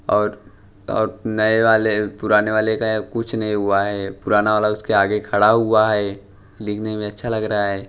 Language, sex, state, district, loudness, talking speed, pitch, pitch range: Hindi, male, Maharashtra, Washim, -19 LUFS, 180 wpm, 105 Hz, 100-110 Hz